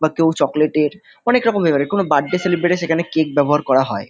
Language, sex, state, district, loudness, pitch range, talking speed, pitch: Bengali, male, West Bengal, North 24 Parganas, -17 LUFS, 150-180 Hz, 235 wpm, 160 Hz